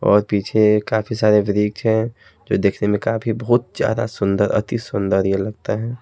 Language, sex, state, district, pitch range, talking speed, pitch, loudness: Hindi, male, Haryana, Jhajjar, 100-115 Hz, 170 wpm, 105 Hz, -19 LUFS